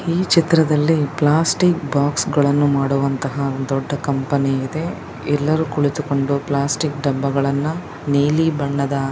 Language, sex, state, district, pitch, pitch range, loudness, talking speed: Kannada, female, Karnataka, Dakshina Kannada, 145 Hz, 140-155 Hz, -19 LUFS, 100 wpm